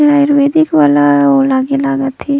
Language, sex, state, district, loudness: Surgujia, female, Chhattisgarh, Sarguja, -11 LUFS